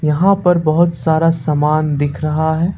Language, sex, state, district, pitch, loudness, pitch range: Hindi, male, Jharkhand, Ranchi, 160 Hz, -14 LUFS, 150-170 Hz